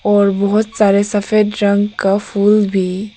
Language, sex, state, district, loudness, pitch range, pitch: Hindi, female, Arunachal Pradesh, Papum Pare, -14 LUFS, 200-210 Hz, 205 Hz